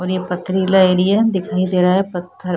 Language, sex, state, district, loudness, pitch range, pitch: Hindi, female, Chhattisgarh, Kabirdham, -16 LUFS, 180-190 Hz, 185 Hz